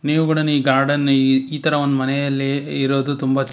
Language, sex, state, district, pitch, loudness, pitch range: Kannada, male, Karnataka, Bangalore, 140 Hz, -18 LUFS, 135-145 Hz